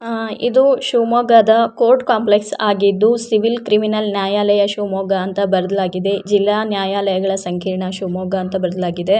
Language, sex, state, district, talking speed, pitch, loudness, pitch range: Kannada, female, Karnataka, Shimoga, 105 wpm, 205 Hz, -16 LUFS, 195-225 Hz